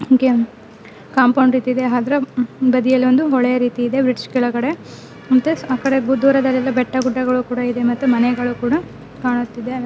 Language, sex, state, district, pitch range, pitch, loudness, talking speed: Kannada, female, Karnataka, Dharwad, 245-260 Hz, 255 Hz, -17 LUFS, 140 wpm